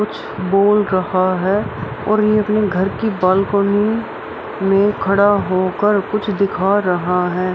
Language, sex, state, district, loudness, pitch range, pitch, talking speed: Hindi, female, Bihar, Araria, -16 LUFS, 185-210 Hz, 200 Hz, 135 wpm